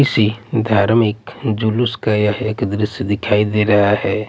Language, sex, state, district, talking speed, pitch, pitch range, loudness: Hindi, male, Punjab, Pathankot, 155 wpm, 110 Hz, 105-115 Hz, -17 LUFS